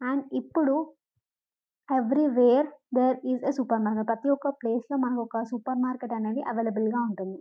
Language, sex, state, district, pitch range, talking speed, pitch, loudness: Telugu, female, Telangana, Karimnagar, 230-275 Hz, 140 wpm, 255 Hz, -27 LUFS